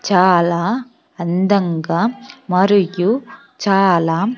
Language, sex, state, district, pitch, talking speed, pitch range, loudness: Telugu, female, Andhra Pradesh, Sri Satya Sai, 195 Hz, 55 wpm, 175-240 Hz, -16 LUFS